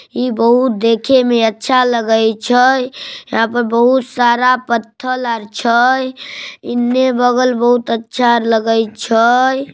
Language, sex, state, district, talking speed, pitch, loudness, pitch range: Magahi, male, Bihar, Samastipur, 115 wpm, 240 Hz, -13 LUFS, 230-255 Hz